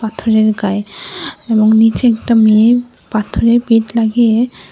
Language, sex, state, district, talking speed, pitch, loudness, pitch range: Bengali, female, Tripura, West Tripura, 115 wpm, 225 Hz, -12 LUFS, 215-235 Hz